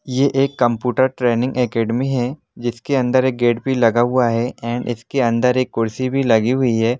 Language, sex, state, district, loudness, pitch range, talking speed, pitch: Hindi, male, Jharkhand, Sahebganj, -18 LUFS, 120-130 Hz, 205 wpm, 125 Hz